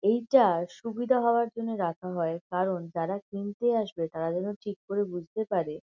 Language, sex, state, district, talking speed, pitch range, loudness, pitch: Bengali, female, West Bengal, Kolkata, 175 wpm, 170-225 Hz, -29 LUFS, 200 Hz